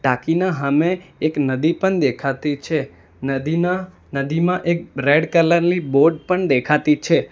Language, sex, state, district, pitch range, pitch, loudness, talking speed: Gujarati, male, Gujarat, Valsad, 140-175 Hz, 155 Hz, -19 LUFS, 140 wpm